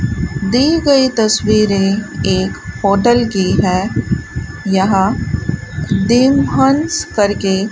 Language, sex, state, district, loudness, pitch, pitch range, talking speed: Hindi, female, Rajasthan, Bikaner, -14 LUFS, 210 Hz, 195-245 Hz, 95 wpm